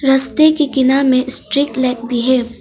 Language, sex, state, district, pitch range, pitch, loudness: Hindi, female, Arunachal Pradesh, Longding, 250-275 Hz, 260 Hz, -14 LUFS